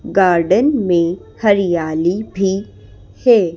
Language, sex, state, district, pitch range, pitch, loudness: Hindi, female, Madhya Pradesh, Bhopal, 170-205 Hz, 185 Hz, -16 LUFS